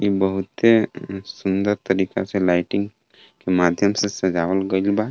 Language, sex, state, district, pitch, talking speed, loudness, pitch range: Bhojpuri, male, Jharkhand, Palamu, 95 Hz, 150 wpm, -20 LUFS, 95-105 Hz